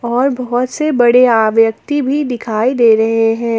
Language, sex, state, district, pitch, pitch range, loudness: Hindi, female, Jharkhand, Ranchi, 240 Hz, 225-255 Hz, -13 LUFS